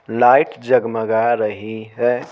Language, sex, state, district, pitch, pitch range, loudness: Hindi, male, Bihar, Patna, 115 Hz, 110-120 Hz, -17 LUFS